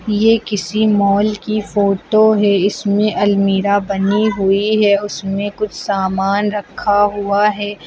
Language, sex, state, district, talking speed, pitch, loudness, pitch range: Hindi, female, Uttar Pradesh, Lucknow, 130 wpm, 205 Hz, -15 LUFS, 200-210 Hz